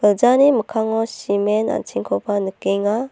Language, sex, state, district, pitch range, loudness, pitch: Garo, female, Meghalaya, North Garo Hills, 200-225 Hz, -19 LUFS, 210 Hz